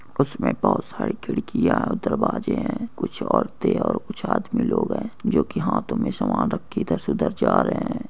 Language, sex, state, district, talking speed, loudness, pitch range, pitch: Hindi, male, Andhra Pradesh, Krishna, 195 wpm, -23 LUFS, 220-245 Hz, 230 Hz